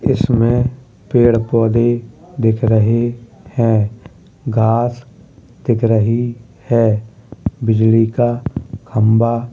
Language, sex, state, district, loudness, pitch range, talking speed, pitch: Hindi, male, Uttar Pradesh, Hamirpur, -16 LUFS, 110-120 Hz, 90 wpm, 115 Hz